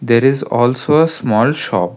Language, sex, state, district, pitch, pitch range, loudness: English, male, Karnataka, Bangalore, 130 Hz, 115-145 Hz, -14 LUFS